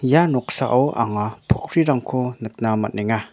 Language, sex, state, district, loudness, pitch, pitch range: Garo, male, Meghalaya, North Garo Hills, -21 LUFS, 120 Hz, 110-135 Hz